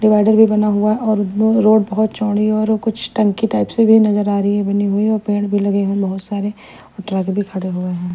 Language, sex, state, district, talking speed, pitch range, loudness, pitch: Hindi, female, Maharashtra, Mumbai Suburban, 275 wpm, 200-215 Hz, -16 LUFS, 210 Hz